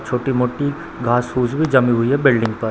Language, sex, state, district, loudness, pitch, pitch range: Hindi, male, Bihar, Samastipur, -18 LUFS, 125 Hz, 120-140 Hz